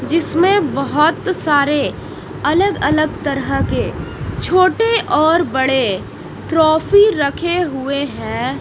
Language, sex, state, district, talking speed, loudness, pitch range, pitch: Hindi, female, Odisha, Nuapada, 100 wpm, -16 LUFS, 285-370 Hz, 320 Hz